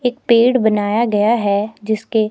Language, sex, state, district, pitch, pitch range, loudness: Hindi, female, Himachal Pradesh, Shimla, 220 Hz, 210-235 Hz, -16 LUFS